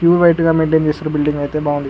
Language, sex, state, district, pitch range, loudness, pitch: Telugu, male, Andhra Pradesh, Guntur, 150-165 Hz, -15 LUFS, 155 Hz